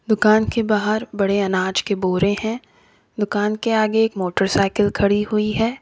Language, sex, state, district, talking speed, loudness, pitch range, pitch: Hindi, female, Uttar Pradesh, Lalitpur, 165 wpm, -19 LUFS, 200-220 Hz, 210 Hz